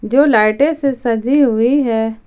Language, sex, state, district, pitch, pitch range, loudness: Hindi, female, Jharkhand, Ranchi, 245 Hz, 225-280 Hz, -14 LUFS